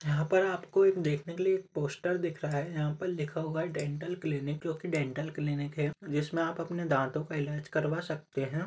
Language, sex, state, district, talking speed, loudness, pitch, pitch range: Hindi, male, Jharkhand, Sahebganj, 210 wpm, -32 LUFS, 155 Hz, 150-175 Hz